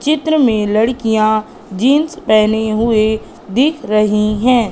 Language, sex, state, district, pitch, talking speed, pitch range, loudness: Hindi, female, Madhya Pradesh, Katni, 220 Hz, 115 wpm, 215-255 Hz, -14 LUFS